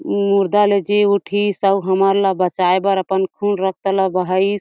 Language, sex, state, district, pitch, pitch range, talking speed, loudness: Chhattisgarhi, female, Chhattisgarh, Jashpur, 195 Hz, 190-200 Hz, 195 wpm, -17 LUFS